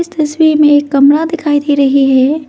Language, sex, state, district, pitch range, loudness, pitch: Hindi, female, Arunachal Pradesh, Lower Dibang Valley, 280-310 Hz, -10 LUFS, 295 Hz